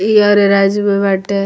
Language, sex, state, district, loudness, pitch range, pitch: Bhojpuri, female, Bihar, Muzaffarpur, -12 LUFS, 195-205 Hz, 200 Hz